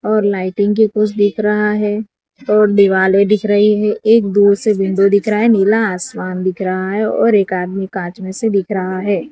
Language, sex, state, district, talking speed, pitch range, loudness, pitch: Hindi, female, Gujarat, Valsad, 210 wpm, 190-210 Hz, -14 LUFS, 205 Hz